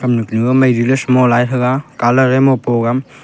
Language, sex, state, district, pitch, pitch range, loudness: Wancho, male, Arunachal Pradesh, Longding, 125 Hz, 120-130 Hz, -13 LUFS